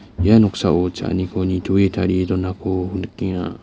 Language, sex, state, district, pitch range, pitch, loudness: Garo, male, Meghalaya, West Garo Hills, 90-95 Hz, 95 Hz, -19 LUFS